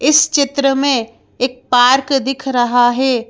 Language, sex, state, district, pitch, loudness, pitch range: Hindi, female, Madhya Pradesh, Bhopal, 260 Hz, -14 LUFS, 245-275 Hz